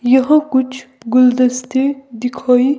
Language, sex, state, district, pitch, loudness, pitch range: Hindi, female, Himachal Pradesh, Shimla, 255 Hz, -15 LUFS, 250-270 Hz